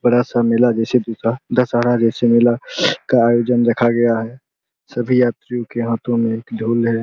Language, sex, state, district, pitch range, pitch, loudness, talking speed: Hindi, male, Bihar, Araria, 115-120 Hz, 120 Hz, -17 LUFS, 180 wpm